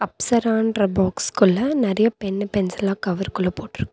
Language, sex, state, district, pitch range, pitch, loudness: Tamil, female, Tamil Nadu, Nilgiris, 185-225 Hz, 200 Hz, -21 LUFS